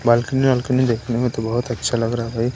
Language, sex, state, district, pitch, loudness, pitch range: Hindi, male, Maharashtra, Washim, 120 Hz, -20 LUFS, 115-125 Hz